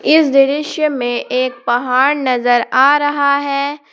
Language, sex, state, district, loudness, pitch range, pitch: Hindi, female, Jharkhand, Palamu, -14 LUFS, 250-290 Hz, 275 Hz